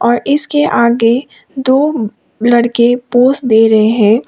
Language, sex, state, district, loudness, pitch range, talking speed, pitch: Hindi, female, Sikkim, Gangtok, -11 LUFS, 230-265 Hz, 125 wpm, 240 Hz